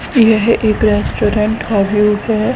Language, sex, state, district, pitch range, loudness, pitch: Hindi, female, Haryana, Rohtak, 210-225 Hz, -13 LUFS, 215 Hz